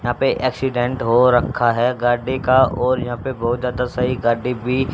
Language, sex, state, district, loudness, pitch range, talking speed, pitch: Hindi, male, Haryana, Rohtak, -18 LUFS, 120-130 Hz, 195 wpm, 125 Hz